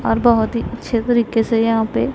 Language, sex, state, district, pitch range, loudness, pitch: Hindi, female, Punjab, Pathankot, 225-235 Hz, -17 LUFS, 225 Hz